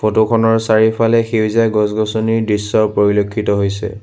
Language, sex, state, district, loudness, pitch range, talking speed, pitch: Assamese, male, Assam, Sonitpur, -15 LUFS, 105-115 Hz, 120 wpm, 110 Hz